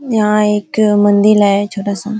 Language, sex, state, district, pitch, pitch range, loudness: Hindi, female, Uttar Pradesh, Ghazipur, 210 Hz, 205-215 Hz, -12 LUFS